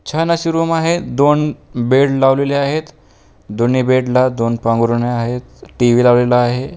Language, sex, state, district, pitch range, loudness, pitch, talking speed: Marathi, male, Maharashtra, Pune, 120-150 Hz, -15 LUFS, 130 Hz, 150 wpm